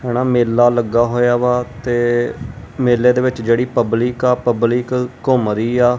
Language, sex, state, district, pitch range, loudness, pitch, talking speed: Punjabi, male, Punjab, Kapurthala, 120-125 Hz, -16 LUFS, 120 Hz, 160 wpm